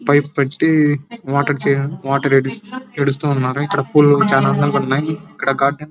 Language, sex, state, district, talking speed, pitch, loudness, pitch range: Telugu, male, Andhra Pradesh, Anantapur, 90 wpm, 140 Hz, -16 LUFS, 135-150 Hz